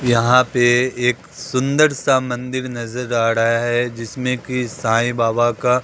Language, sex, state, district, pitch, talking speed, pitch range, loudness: Hindi, male, Bihar, Katihar, 125 Hz, 155 wpm, 120-130 Hz, -18 LUFS